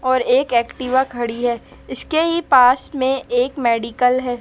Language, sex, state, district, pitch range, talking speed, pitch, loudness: Hindi, female, Madhya Pradesh, Dhar, 245-260 Hz, 165 wpm, 255 Hz, -18 LUFS